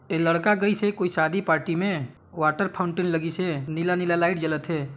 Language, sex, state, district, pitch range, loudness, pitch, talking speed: Chhattisgarhi, male, Chhattisgarh, Sarguja, 160-185 Hz, -24 LUFS, 170 Hz, 205 wpm